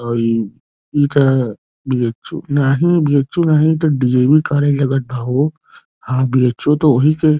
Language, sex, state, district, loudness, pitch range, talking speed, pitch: Bhojpuri, male, Uttar Pradesh, Varanasi, -15 LUFS, 125-150 Hz, 170 wpm, 135 Hz